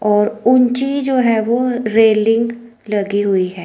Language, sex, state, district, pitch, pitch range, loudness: Hindi, female, Himachal Pradesh, Shimla, 225 Hz, 210-245 Hz, -15 LUFS